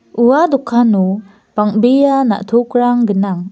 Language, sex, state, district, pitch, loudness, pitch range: Garo, female, Meghalaya, West Garo Hills, 235 Hz, -13 LUFS, 205-245 Hz